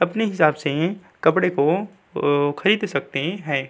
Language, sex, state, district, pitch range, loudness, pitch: Hindi, male, Uttarakhand, Tehri Garhwal, 145-195 Hz, -21 LUFS, 165 Hz